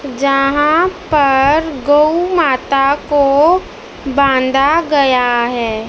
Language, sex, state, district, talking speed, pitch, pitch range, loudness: Hindi, male, Madhya Pradesh, Dhar, 80 wpm, 280 Hz, 265-300 Hz, -13 LUFS